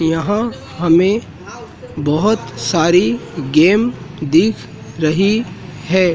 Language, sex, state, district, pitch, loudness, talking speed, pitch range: Hindi, male, Madhya Pradesh, Dhar, 170 Hz, -15 LUFS, 80 wpm, 155-205 Hz